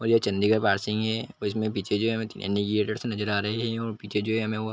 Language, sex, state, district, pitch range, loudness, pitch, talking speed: Hindi, male, Chhattisgarh, Bilaspur, 105-110 Hz, -27 LUFS, 110 Hz, 255 wpm